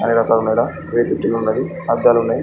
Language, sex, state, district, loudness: Telugu, male, Andhra Pradesh, Srikakulam, -17 LUFS